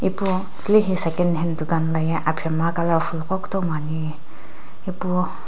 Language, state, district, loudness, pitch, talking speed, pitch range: Sumi, Nagaland, Dimapur, -21 LUFS, 170 Hz, 120 wpm, 160-185 Hz